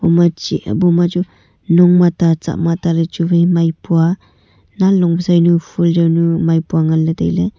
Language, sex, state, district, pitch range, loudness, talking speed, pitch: Wancho, female, Arunachal Pradesh, Longding, 165-175 Hz, -14 LUFS, 190 wpm, 170 Hz